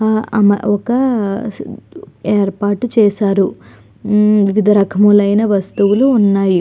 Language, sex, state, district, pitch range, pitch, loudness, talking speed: Telugu, female, Andhra Pradesh, Chittoor, 200-215 Hz, 205 Hz, -13 LUFS, 80 wpm